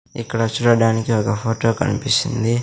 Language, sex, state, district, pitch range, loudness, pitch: Telugu, male, Andhra Pradesh, Sri Satya Sai, 115-120 Hz, -19 LUFS, 115 Hz